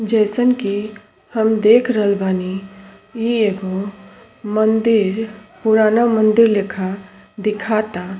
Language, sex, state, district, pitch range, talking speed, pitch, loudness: Bhojpuri, female, Uttar Pradesh, Ghazipur, 200-225 Hz, 95 wpm, 215 Hz, -17 LUFS